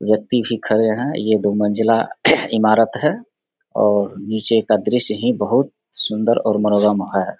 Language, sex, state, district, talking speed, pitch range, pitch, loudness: Hindi, male, Bihar, Samastipur, 160 wpm, 105-115 Hz, 110 Hz, -18 LUFS